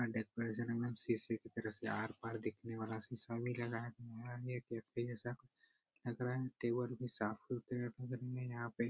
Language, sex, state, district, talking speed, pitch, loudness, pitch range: Hindi, male, Bihar, Araria, 210 wpm, 120 Hz, -44 LUFS, 115-125 Hz